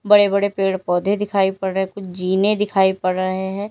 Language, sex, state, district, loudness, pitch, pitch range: Hindi, female, Uttar Pradesh, Lalitpur, -19 LUFS, 195 Hz, 190-200 Hz